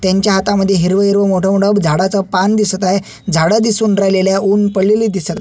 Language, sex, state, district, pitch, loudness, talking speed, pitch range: Marathi, male, Maharashtra, Solapur, 195 Hz, -13 LUFS, 190 wpm, 190-205 Hz